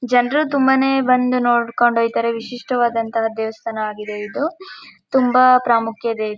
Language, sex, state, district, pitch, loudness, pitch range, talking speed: Kannada, female, Karnataka, Mysore, 240 Hz, -18 LUFS, 225-255 Hz, 115 wpm